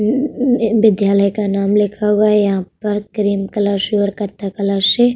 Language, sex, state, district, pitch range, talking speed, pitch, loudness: Hindi, female, Uttar Pradesh, Budaun, 200-215 Hz, 175 wpm, 205 Hz, -16 LUFS